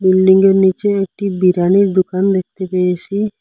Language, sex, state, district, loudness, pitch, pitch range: Bengali, male, Assam, Hailakandi, -14 LUFS, 190 Hz, 185-195 Hz